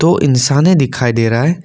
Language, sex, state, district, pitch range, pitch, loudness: Hindi, male, Assam, Kamrup Metropolitan, 125-165 Hz, 145 Hz, -12 LUFS